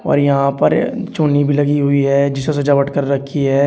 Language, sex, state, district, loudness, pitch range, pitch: Hindi, male, Uttar Pradesh, Shamli, -15 LUFS, 140-145 Hz, 140 Hz